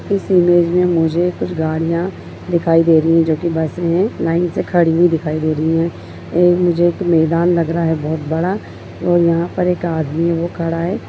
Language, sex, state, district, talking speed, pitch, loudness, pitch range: Hindi, female, Bihar, Jamui, 205 wpm, 170 Hz, -16 LUFS, 160-175 Hz